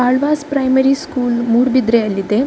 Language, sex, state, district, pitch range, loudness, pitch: Kannada, female, Karnataka, Dakshina Kannada, 235-275 Hz, -15 LUFS, 255 Hz